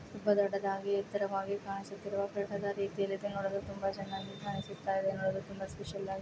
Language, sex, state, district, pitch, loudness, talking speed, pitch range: Kannada, female, Karnataka, Chamarajanagar, 195 Hz, -36 LUFS, 115 wpm, 195-200 Hz